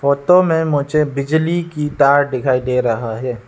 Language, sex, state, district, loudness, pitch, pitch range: Hindi, male, Arunachal Pradesh, Lower Dibang Valley, -16 LUFS, 140 Hz, 130-155 Hz